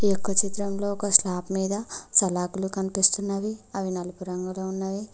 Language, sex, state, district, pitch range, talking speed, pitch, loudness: Telugu, female, Telangana, Mahabubabad, 190-200 Hz, 140 wpm, 195 Hz, -24 LUFS